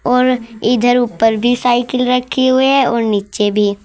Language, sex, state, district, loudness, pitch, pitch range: Hindi, female, Uttar Pradesh, Saharanpur, -14 LUFS, 245 Hz, 220-250 Hz